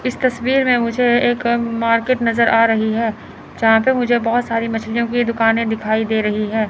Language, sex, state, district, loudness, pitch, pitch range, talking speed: Hindi, female, Chandigarh, Chandigarh, -17 LUFS, 230 Hz, 225-240 Hz, 195 wpm